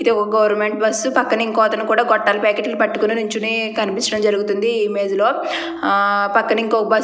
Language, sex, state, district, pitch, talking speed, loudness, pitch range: Telugu, female, Andhra Pradesh, Chittoor, 220 Hz, 170 wpm, -17 LUFS, 210-225 Hz